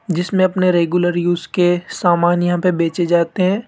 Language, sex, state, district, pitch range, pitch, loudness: Hindi, male, Rajasthan, Jaipur, 175-185 Hz, 175 Hz, -16 LUFS